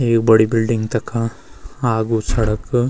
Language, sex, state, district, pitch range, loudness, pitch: Garhwali, male, Uttarakhand, Uttarkashi, 110-115 Hz, -18 LUFS, 115 Hz